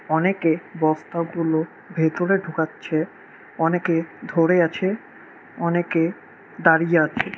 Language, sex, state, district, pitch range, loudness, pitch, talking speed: Bengali, male, West Bengal, Cooch Behar, 160-180 Hz, -22 LUFS, 165 Hz, 80 wpm